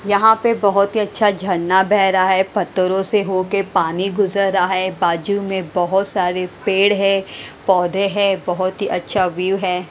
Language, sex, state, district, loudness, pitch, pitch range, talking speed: Hindi, female, Haryana, Jhajjar, -17 LUFS, 190 Hz, 185-200 Hz, 175 wpm